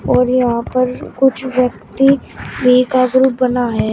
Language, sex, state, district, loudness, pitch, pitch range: Hindi, female, Uttar Pradesh, Shamli, -14 LUFS, 255 Hz, 250-260 Hz